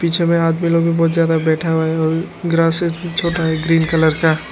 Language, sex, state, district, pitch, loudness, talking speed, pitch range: Hindi, male, Arunachal Pradesh, Lower Dibang Valley, 165 Hz, -16 LUFS, 240 wpm, 160-170 Hz